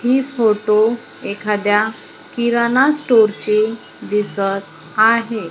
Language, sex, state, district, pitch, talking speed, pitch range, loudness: Marathi, female, Maharashtra, Gondia, 220 Hz, 85 wpm, 210-235 Hz, -16 LUFS